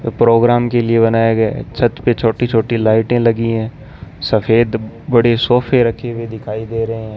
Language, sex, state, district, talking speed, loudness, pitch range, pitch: Hindi, male, Rajasthan, Bikaner, 185 wpm, -15 LUFS, 115-120 Hz, 115 Hz